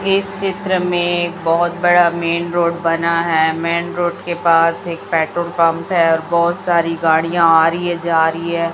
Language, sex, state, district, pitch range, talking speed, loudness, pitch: Hindi, female, Chhattisgarh, Raipur, 165-175 Hz, 185 wpm, -16 LUFS, 170 Hz